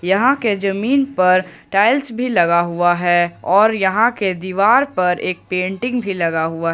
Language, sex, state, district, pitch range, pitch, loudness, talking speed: Hindi, male, Jharkhand, Ranchi, 175-225 Hz, 190 Hz, -16 LUFS, 180 wpm